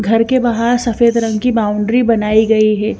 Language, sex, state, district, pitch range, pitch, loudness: Hindi, female, Haryana, Jhajjar, 215-240 Hz, 225 Hz, -13 LUFS